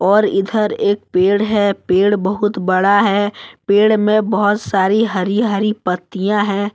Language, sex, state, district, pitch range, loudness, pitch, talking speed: Hindi, male, Jharkhand, Deoghar, 195-210 Hz, -15 LUFS, 205 Hz, 150 wpm